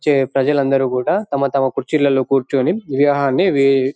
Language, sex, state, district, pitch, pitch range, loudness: Telugu, male, Telangana, Karimnagar, 135 Hz, 135-140 Hz, -16 LUFS